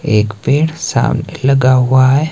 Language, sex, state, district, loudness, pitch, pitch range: Hindi, male, Himachal Pradesh, Shimla, -13 LUFS, 135 Hz, 130-150 Hz